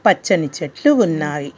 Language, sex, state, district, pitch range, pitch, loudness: Telugu, female, Telangana, Hyderabad, 150-215 Hz, 165 Hz, -17 LUFS